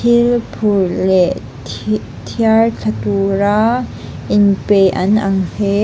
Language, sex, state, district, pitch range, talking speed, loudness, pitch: Mizo, female, Mizoram, Aizawl, 170-215 Hz, 115 wpm, -15 LUFS, 195 Hz